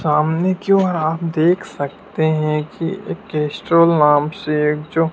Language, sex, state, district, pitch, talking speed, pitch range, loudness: Hindi, male, Madhya Pradesh, Dhar, 155 Hz, 150 wpm, 150-175 Hz, -18 LUFS